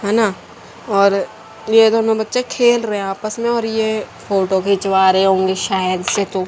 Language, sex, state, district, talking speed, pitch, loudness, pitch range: Hindi, female, Haryana, Jhajjar, 185 wpm, 205 Hz, -16 LUFS, 190-225 Hz